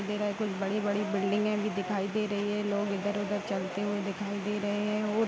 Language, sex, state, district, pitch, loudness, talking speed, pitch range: Hindi, female, Bihar, Vaishali, 205 Hz, -31 LUFS, 240 wpm, 200-210 Hz